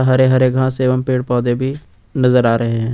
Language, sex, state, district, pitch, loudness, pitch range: Hindi, male, Jharkhand, Ranchi, 130 Hz, -15 LUFS, 120-130 Hz